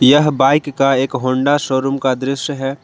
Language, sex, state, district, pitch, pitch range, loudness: Hindi, male, Jharkhand, Garhwa, 135 Hz, 130-145 Hz, -15 LUFS